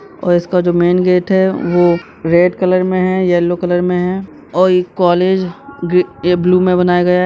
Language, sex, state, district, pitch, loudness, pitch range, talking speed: Hindi, male, Bihar, Madhepura, 180 Hz, -13 LUFS, 175-185 Hz, 200 wpm